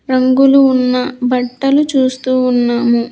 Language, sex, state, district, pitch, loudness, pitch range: Telugu, female, Andhra Pradesh, Sri Satya Sai, 255 Hz, -13 LUFS, 250-270 Hz